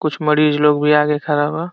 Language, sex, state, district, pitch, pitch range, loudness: Bhojpuri, male, Bihar, Saran, 150 Hz, 150-155 Hz, -15 LUFS